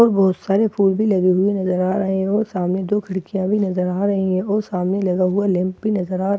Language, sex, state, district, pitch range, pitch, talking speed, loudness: Hindi, female, Bihar, Katihar, 185-200 Hz, 190 Hz, 280 wpm, -19 LUFS